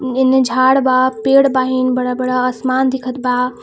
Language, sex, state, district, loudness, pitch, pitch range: Bhojpuri, female, Jharkhand, Palamu, -14 LUFS, 255 Hz, 250-260 Hz